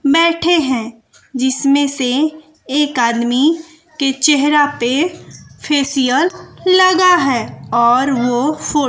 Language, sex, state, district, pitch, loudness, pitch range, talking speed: Hindi, female, Bihar, West Champaran, 285 Hz, -14 LUFS, 255-315 Hz, 110 wpm